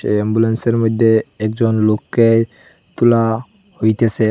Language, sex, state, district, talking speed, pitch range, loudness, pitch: Bengali, male, Assam, Hailakandi, 85 wpm, 110-115 Hz, -16 LUFS, 115 Hz